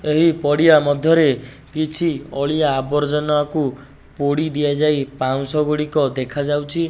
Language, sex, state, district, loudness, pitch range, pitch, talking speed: Odia, male, Odisha, Nuapada, -18 LUFS, 140-155 Hz, 145 Hz, 85 wpm